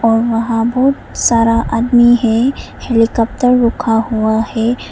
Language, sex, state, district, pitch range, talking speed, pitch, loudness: Hindi, female, Arunachal Pradesh, Papum Pare, 225-240 Hz, 120 wpm, 230 Hz, -13 LUFS